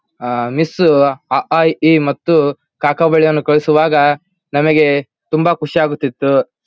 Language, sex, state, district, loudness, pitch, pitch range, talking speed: Kannada, male, Karnataka, Bellary, -14 LUFS, 150 Hz, 145-160 Hz, 125 wpm